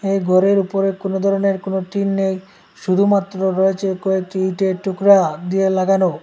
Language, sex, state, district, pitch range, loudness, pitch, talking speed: Bengali, male, Assam, Hailakandi, 190-195 Hz, -17 LUFS, 190 Hz, 145 wpm